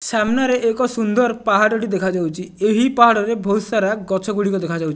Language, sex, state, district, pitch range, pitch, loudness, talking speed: Odia, male, Odisha, Nuapada, 195-230 Hz, 215 Hz, -18 LUFS, 205 wpm